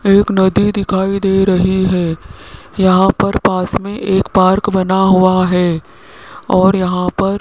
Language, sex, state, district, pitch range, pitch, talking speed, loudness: Hindi, male, Rajasthan, Jaipur, 185-195 Hz, 190 Hz, 155 wpm, -13 LUFS